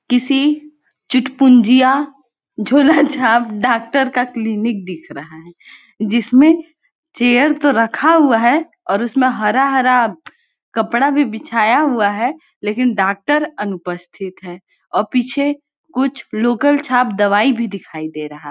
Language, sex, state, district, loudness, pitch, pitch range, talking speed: Hindi, female, Chhattisgarh, Balrampur, -15 LUFS, 245 Hz, 215-285 Hz, 125 wpm